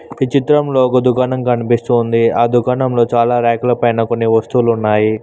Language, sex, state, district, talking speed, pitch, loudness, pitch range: Telugu, male, Telangana, Mahabubabad, 170 wpm, 120 Hz, -14 LUFS, 115-125 Hz